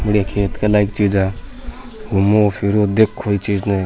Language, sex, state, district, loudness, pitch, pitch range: Rajasthani, male, Rajasthan, Churu, -17 LUFS, 100 Hz, 100-105 Hz